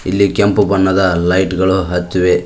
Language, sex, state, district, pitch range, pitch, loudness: Kannada, male, Karnataka, Koppal, 90-95 Hz, 95 Hz, -13 LUFS